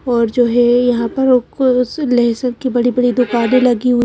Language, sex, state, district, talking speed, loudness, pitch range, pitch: Hindi, female, Madhya Pradesh, Bhopal, 165 wpm, -14 LUFS, 240-250 Hz, 245 Hz